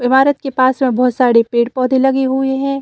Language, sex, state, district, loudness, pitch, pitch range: Hindi, female, Bihar, Saran, -14 LUFS, 260 Hz, 250-270 Hz